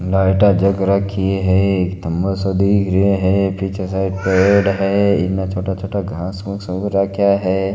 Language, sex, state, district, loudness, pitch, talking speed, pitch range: Marwari, male, Rajasthan, Nagaur, -17 LUFS, 95 Hz, 165 wpm, 95-100 Hz